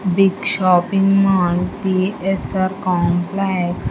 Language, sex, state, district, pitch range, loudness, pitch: English, female, Andhra Pradesh, Sri Satya Sai, 180-195 Hz, -17 LUFS, 190 Hz